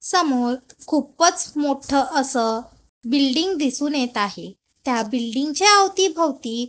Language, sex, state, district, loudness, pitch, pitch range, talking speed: Marathi, female, Maharashtra, Gondia, -20 LUFS, 275 Hz, 245-330 Hz, 115 wpm